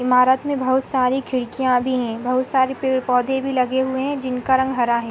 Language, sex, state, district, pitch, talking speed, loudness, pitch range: Hindi, female, Uttar Pradesh, Hamirpur, 260 Hz, 225 wpm, -20 LUFS, 250-265 Hz